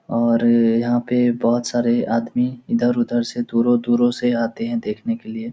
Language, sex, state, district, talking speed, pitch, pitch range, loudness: Hindi, male, Bihar, Lakhisarai, 185 wpm, 120 Hz, 120-125 Hz, -19 LUFS